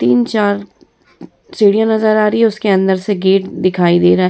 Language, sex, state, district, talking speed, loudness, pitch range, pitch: Hindi, female, Bihar, Vaishali, 195 wpm, -13 LUFS, 185-215 Hz, 195 Hz